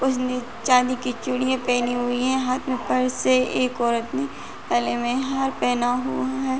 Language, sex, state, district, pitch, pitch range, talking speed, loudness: Hindi, female, Uttar Pradesh, Muzaffarnagar, 255 Hz, 245-260 Hz, 180 wpm, -23 LUFS